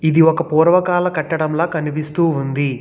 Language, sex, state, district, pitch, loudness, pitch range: Telugu, male, Telangana, Hyderabad, 160 Hz, -17 LUFS, 155-170 Hz